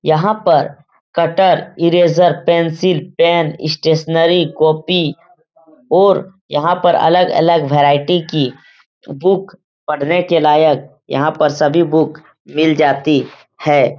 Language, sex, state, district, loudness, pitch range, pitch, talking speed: Hindi, male, Uttar Pradesh, Etah, -14 LUFS, 155-175 Hz, 165 Hz, 110 wpm